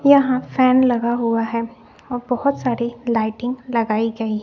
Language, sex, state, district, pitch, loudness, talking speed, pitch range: Hindi, female, Bihar, West Champaran, 240 Hz, -19 LUFS, 150 wpm, 230-255 Hz